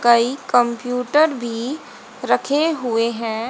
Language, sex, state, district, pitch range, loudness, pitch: Hindi, female, Haryana, Charkhi Dadri, 235-285 Hz, -19 LUFS, 245 Hz